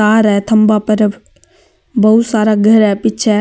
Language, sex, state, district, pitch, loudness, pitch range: Marwari, male, Rajasthan, Nagaur, 215 Hz, -11 LUFS, 210-220 Hz